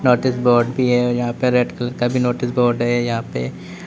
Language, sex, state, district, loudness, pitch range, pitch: Hindi, male, Uttar Pradesh, Lalitpur, -18 LUFS, 120-125 Hz, 120 Hz